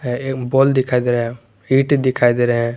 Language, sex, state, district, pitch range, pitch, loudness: Hindi, male, Jharkhand, Garhwa, 120-135 Hz, 125 Hz, -17 LUFS